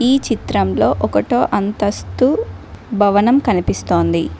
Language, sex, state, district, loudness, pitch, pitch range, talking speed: Telugu, female, Telangana, Mahabubabad, -16 LUFS, 210 Hz, 200-255 Hz, 80 wpm